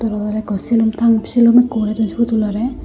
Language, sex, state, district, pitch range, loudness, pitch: Chakma, female, Tripura, Unakoti, 215-235 Hz, -16 LUFS, 225 Hz